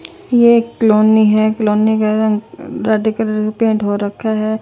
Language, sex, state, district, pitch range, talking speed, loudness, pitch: Hindi, female, Chandigarh, Chandigarh, 215-225 Hz, 170 wpm, -14 LUFS, 220 Hz